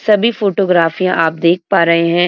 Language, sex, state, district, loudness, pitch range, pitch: Hindi, female, Uttarakhand, Uttarkashi, -13 LUFS, 170-200 Hz, 175 Hz